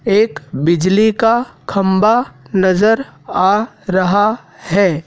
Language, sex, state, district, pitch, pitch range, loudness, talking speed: Hindi, male, Madhya Pradesh, Dhar, 205 Hz, 185-220 Hz, -15 LUFS, 95 wpm